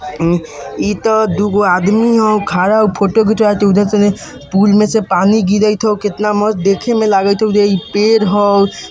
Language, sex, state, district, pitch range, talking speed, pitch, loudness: Bajjika, male, Bihar, Vaishali, 200-215 Hz, 180 wpm, 205 Hz, -12 LUFS